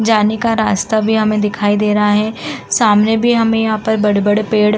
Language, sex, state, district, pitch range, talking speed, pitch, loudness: Hindi, female, Uttar Pradesh, Muzaffarnagar, 210-220 Hz, 215 wpm, 215 Hz, -14 LUFS